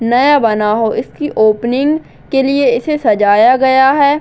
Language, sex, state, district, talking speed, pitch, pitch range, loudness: Hindi, female, Bihar, Muzaffarpur, 155 wpm, 260 Hz, 225-285 Hz, -12 LUFS